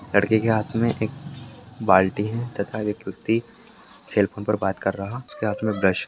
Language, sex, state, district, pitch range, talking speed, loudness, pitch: Hindi, male, Bihar, Bhagalpur, 100-115 Hz, 205 wpm, -24 LUFS, 105 Hz